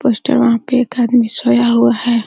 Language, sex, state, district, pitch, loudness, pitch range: Hindi, female, Bihar, Araria, 240 Hz, -13 LUFS, 210-250 Hz